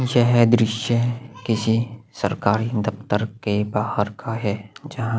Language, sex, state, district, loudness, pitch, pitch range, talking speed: Hindi, male, Chhattisgarh, Sukma, -22 LUFS, 115 Hz, 105-120 Hz, 125 wpm